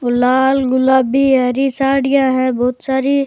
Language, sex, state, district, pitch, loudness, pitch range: Rajasthani, male, Rajasthan, Churu, 265 Hz, -14 LUFS, 255-270 Hz